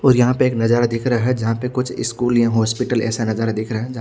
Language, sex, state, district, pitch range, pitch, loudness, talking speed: Hindi, male, Chhattisgarh, Raipur, 115-125 Hz, 120 Hz, -18 LUFS, 300 wpm